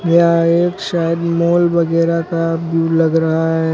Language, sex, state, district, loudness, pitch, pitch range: Hindi, male, Uttar Pradesh, Lucknow, -15 LUFS, 165 Hz, 165-170 Hz